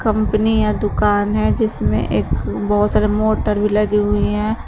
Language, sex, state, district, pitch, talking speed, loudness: Hindi, female, Uttar Pradesh, Shamli, 210 Hz, 165 wpm, -17 LUFS